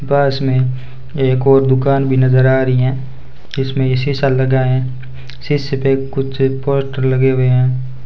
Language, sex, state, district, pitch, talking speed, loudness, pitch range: Hindi, male, Rajasthan, Bikaner, 130 Hz, 165 wpm, -15 LUFS, 130-135 Hz